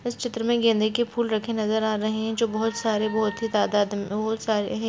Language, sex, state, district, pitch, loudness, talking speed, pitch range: Angika, female, Bihar, Madhepura, 220 Hz, -25 LUFS, 255 wpm, 215-230 Hz